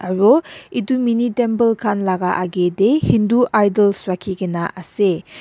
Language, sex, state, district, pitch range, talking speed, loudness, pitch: Nagamese, female, Nagaland, Dimapur, 185-230 Hz, 135 wpm, -17 LUFS, 200 Hz